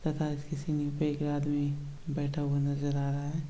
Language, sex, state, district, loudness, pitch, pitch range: Hindi, male, Bihar, Begusarai, -32 LUFS, 145 Hz, 145-150 Hz